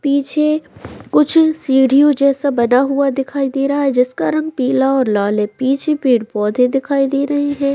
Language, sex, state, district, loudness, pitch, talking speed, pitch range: Hindi, female, Chhattisgarh, Bilaspur, -15 LUFS, 275 Hz, 180 wpm, 260-285 Hz